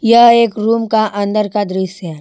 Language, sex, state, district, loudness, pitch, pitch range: Hindi, female, Jharkhand, Ranchi, -13 LUFS, 215 Hz, 200-230 Hz